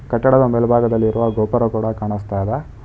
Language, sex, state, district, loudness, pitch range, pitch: Kannada, male, Karnataka, Bangalore, -17 LUFS, 110-120 Hz, 115 Hz